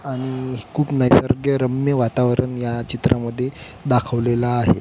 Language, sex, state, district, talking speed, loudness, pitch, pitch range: Marathi, male, Maharashtra, Pune, 100 wpm, -20 LUFS, 125 Hz, 120-130 Hz